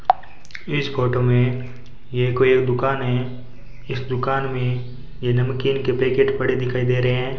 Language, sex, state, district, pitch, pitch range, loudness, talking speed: Hindi, male, Rajasthan, Bikaner, 125 Hz, 125-130 Hz, -21 LUFS, 155 wpm